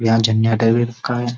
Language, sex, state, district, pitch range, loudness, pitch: Hindi, male, Uttar Pradesh, Jyotiba Phule Nagar, 115-120 Hz, -17 LUFS, 115 Hz